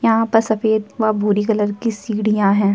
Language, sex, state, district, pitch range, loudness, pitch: Hindi, female, Uttar Pradesh, Jyotiba Phule Nagar, 205-225 Hz, -18 LUFS, 215 Hz